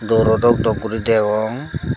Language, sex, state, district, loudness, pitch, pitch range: Chakma, female, Tripura, Dhalai, -17 LUFS, 110 Hz, 110-120 Hz